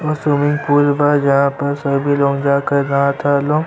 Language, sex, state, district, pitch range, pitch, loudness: Bhojpuri, male, Uttar Pradesh, Ghazipur, 140-145 Hz, 140 Hz, -15 LUFS